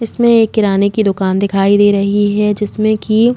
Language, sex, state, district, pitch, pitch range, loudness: Hindi, female, Uttar Pradesh, Jalaun, 210 Hz, 200-220 Hz, -13 LUFS